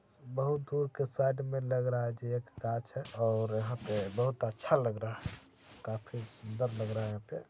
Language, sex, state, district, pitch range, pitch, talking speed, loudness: Hindi, female, Bihar, Saran, 110-135 Hz, 120 Hz, 200 wpm, -35 LUFS